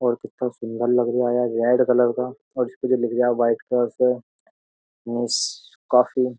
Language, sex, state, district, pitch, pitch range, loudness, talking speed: Hindi, male, Uttar Pradesh, Jyotiba Phule Nagar, 120 Hz, 120-125 Hz, -22 LUFS, 190 wpm